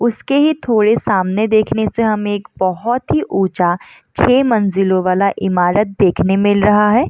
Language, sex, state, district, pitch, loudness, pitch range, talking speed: Hindi, female, Bihar, Samastipur, 210 Hz, -15 LUFS, 190-225 Hz, 160 wpm